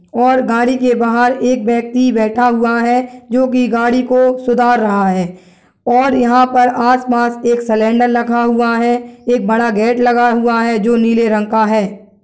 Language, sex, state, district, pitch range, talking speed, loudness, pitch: Angika, female, Bihar, Madhepura, 230-245 Hz, 180 wpm, -13 LUFS, 240 Hz